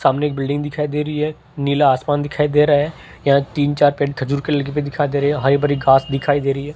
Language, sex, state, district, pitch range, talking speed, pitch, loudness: Hindi, male, Rajasthan, Jaipur, 140-150 Hz, 285 wpm, 145 Hz, -18 LUFS